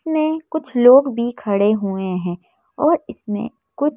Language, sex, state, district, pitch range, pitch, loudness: Hindi, female, Madhya Pradesh, Bhopal, 205-300 Hz, 245 Hz, -18 LUFS